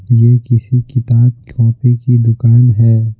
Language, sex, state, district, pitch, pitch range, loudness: Hindi, male, Bihar, Patna, 120 Hz, 115-125 Hz, -11 LUFS